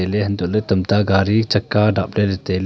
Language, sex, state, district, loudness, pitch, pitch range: Wancho, male, Arunachal Pradesh, Longding, -18 LUFS, 100 Hz, 95-105 Hz